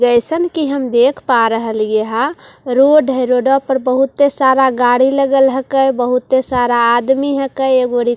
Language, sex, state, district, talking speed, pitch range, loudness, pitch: Hindi, female, Bihar, Katihar, 190 wpm, 245-275 Hz, -13 LUFS, 260 Hz